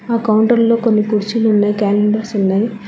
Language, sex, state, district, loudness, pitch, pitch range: Telugu, female, Telangana, Hyderabad, -14 LUFS, 215 Hz, 205-230 Hz